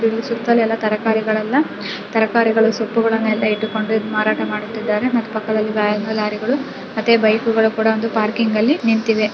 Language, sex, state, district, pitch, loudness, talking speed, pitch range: Kannada, female, Karnataka, Raichur, 220 Hz, -18 LUFS, 95 wpm, 215-225 Hz